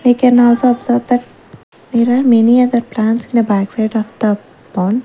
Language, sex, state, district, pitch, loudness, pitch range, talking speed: English, female, Maharashtra, Gondia, 235 Hz, -13 LUFS, 220-245 Hz, 190 wpm